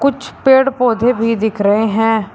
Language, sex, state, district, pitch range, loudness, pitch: Hindi, male, Uttar Pradesh, Shamli, 220-265 Hz, -14 LUFS, 230 Hz